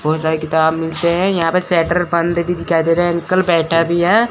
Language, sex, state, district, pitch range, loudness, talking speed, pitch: Hindi, male, Chandigarh, Chandigarh, 165-175 Hz, -15 LUFS, 250 wpm, 170 Hz